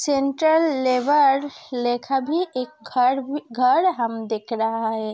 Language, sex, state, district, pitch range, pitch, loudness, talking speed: Hindi, female, Uttar Pradesh, Hamirpur, 235-290 Hz, 260 Hz, -21 LUFS, 130 wpm